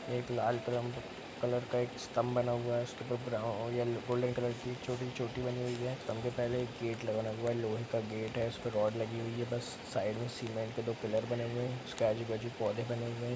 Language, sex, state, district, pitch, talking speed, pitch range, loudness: Hindi, male, Bihar, Araria, 120 Hz, 255 wpm, 115-125 Hz, -36 LUFS